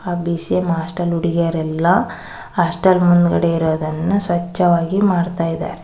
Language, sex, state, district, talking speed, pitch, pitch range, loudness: Kannada, female, Karnataka, Koppal, 80 wpm, 175 Hz, 165-180 Hz, -17 LUFS